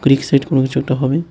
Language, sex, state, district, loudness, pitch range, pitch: Bengali, male, Tripura, West Tripura, -16 LUFS, 135-140 Hz, 135 Hz